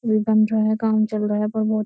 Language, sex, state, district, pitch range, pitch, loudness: Hindi, female, Uttar Pradesh, Jyotiba Phule Nagar, 215-220 Hz, 215 Hz, -20 LUFS